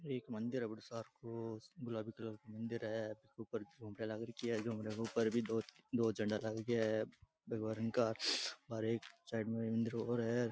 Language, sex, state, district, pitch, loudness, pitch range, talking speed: Rajasthani, male, Rajasthan, Churu, 115 Hz, -41 LUFS, 110-115 Hz, 185 wpm